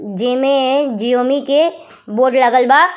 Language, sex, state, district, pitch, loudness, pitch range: Bhojpuri, female, Uttar Pradesh, Ghazipur, 260 Hz, -14 LUFS, 250-280 Hz